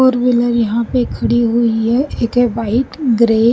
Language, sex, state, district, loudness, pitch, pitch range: Hindi, female, Haryana, Rohtak, -15 LUFS, 235 Hz, 230-245 Hz